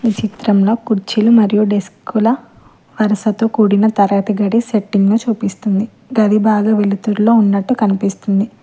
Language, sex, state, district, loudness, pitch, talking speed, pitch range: Telugu, female, Telangana, Mahabubabad, -14 LUFS, 210 Hz, 120 wpm, 200-220 Hz